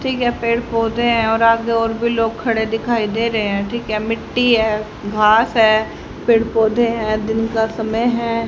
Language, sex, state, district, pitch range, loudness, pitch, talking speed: Hindi, female, Haryana, Rohtak, 220-230 Hz, -17 LUFS, 225 Hz, 200 wpm